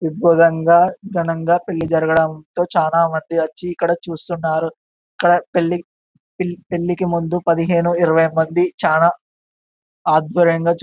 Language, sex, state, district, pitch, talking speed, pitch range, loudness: Telugu, male, Telangana, Karimnagar, 170 Hz, 115 wpm, 165-175 Hz, -17 LUFS